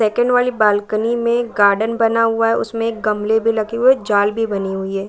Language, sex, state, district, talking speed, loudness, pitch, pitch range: Hindi, female, Bihar, Saran, 235 wpm, -17 LUFS, 225 Hz, 210-230 Hz